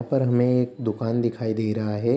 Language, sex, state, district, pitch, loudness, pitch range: Hindi, male, Bihar, Darbhanga, 120 Hz, -24 LUFS, 110-125 Hz